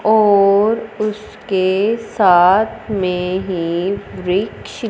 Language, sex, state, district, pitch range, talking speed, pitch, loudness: Hindi, female, Punjab, Fazilka, 185-215 Hz, 75 wpm, 200 Hz, -16 LUFS